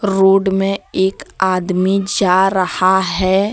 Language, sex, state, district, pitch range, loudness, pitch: Hindi, female, Jharkhand, Deoghar, 185-195 Hz, -15 LUFS, 190 Hz